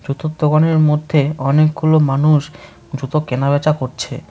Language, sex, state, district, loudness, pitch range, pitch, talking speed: Bengali, male, West Bengal, Cooch Behar, -16 LUFS, 140-155 Hz, 150 Hz, 110 wpm